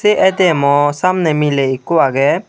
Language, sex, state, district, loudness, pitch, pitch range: Chakma, male, Tripura, Unakoti, -13 LUFS, 155 Hz, 140-185 Hz